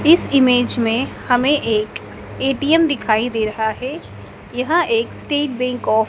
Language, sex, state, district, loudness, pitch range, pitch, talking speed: Hindi, male, Madhya Pradesh, Dhar, -18 LUFS, 225-290 Hz, 250 Hz, 160 wpm